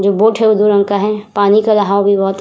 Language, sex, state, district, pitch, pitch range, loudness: Hindi, female, Uttar Pradesh, Budaun, 205 Hz, 200-215 Hz, -12 LUFS